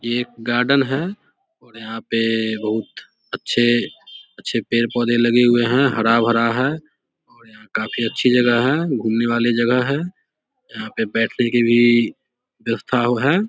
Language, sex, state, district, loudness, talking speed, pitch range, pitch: Hindi, male, Bihar, Samastipur, -18 LUFS, 150 wpm, 115-130 Hz, 120 Hz